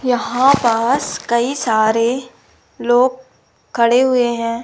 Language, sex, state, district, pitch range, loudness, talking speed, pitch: Hindi, female, Madhya Pradesh, Umaria, 235-255 Hz, -16 LUFS, 105 wpm, 240 Hz